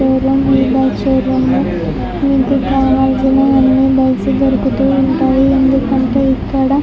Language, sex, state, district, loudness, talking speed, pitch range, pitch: Telugu, female, Andhra Pradesh, Guntur, -13 LUFS, 115 wpm, 265-270 Hz, 265 Hz